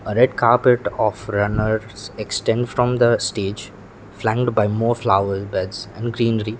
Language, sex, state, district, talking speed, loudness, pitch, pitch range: English, male, Sikkim, Gangtok, 135 wpm, -20 LUFS, 105 Hz, 100-115 Hz